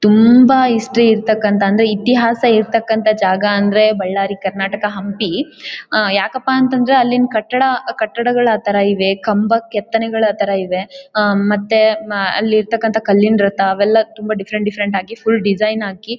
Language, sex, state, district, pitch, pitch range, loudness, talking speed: Kannada, female, Karnataka, Bellary, 215 Hz, 200-230 Hz, -14 LUFS, 135 wpm